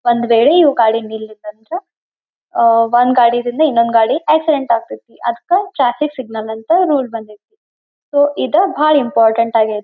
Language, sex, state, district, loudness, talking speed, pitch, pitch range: Kannada, female, Karnataka, Belgaum, -14 LUFS, 140 wpm, 240 Hz, 225-300 Hz